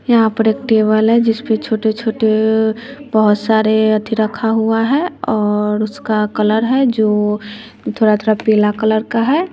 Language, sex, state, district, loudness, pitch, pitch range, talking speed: Hindi, male, Bihar, West Champaran, -15 LUFS, 220 Hz, 215-225 Hz, 145 wpm